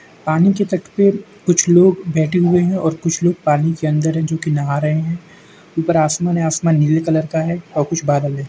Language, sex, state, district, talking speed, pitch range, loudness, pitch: Hindi, male, Uttar Pradesh, Jalaun, 235 wpm, 155-175 Hz, -16 LUFS, 165 Hz